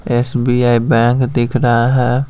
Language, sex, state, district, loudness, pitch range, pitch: Hindi, male, Bihar, Patna, -14 LUFS, 120-125 Hz, 125 Hz